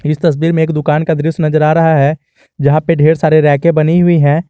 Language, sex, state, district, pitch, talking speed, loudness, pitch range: Hindi, male, Jharkhand, Garhwa, 155 Hz, 255 wpm, -11 LUFS, 150-165 Hz